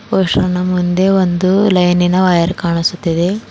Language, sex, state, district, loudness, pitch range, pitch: Kannada, female, Karnataka, Bidar, -13 LUFS, 175-185 Hz, 180 Hz